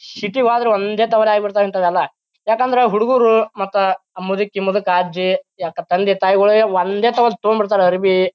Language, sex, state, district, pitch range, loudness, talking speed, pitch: Kannada, male, Karnataka, Bijapur, 190-225 Hz, -16 LUFS, 130 wpm, 205 Hz